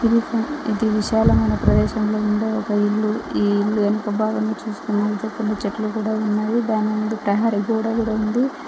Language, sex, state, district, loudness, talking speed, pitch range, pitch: Telugu, female, Telangana, Mahabubabad, -21 LUFS, 160 wpm, 210-220 Hz, 215 Hz